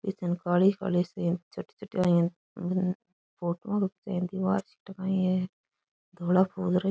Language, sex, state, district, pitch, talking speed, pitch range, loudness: Rajasthani, female, Rajasthan, Churu, 185 Hz, 120 wpm, 180-195 Hz, -29 LUFS